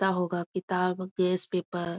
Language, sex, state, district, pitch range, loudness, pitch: Hindi, female, Bihar, Muzaffarpur, 180-185 Hz, -29 LUFS, 180 Hz